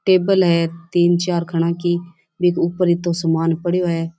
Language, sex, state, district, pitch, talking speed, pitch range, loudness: Rajasthani, female, Rajasthan, Churu, 175 Hz, 155 wpm, 170-175 Hz, -18 LUFS